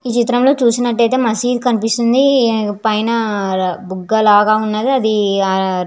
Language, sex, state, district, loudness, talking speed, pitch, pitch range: Telugu, female, Andhra Pradesh, Visakhapatnam, -14 LUFS, 135 wpm, 220 Hz, 205-245 Hz